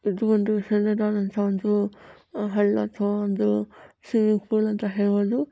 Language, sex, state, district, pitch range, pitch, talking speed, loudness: Kannada, female, Karnataka, Bijapur, 205-215 Hz, 205 Hz, 120 wpm, -24 LUFS